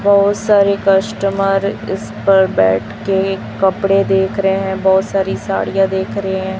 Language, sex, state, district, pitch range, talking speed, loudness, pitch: Hindi, female, Chhattisgarh, Raipur, 190-195 Hz, 145 wpm, -15 LUFS, 195 Hz